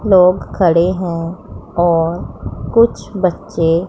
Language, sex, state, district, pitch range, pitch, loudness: Hindi, female, Punjab, Pathankot, 170-190 Hz, 175 Hz, -15 LUFS